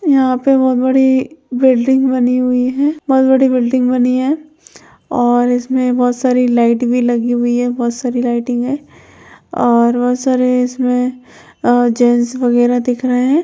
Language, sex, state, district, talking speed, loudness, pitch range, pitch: Hindi, female, Chhattisgarh, Raigarh, 160 wpm, -14 LUFS, 245-260 Hz, 250 Hz